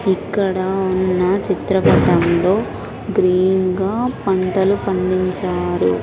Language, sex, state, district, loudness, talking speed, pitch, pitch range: Telugu, female, Andhra Pradesh, Sri Satya Sai, -17 LUFS, 70 wpm, 185 Hz, 185-195 Hz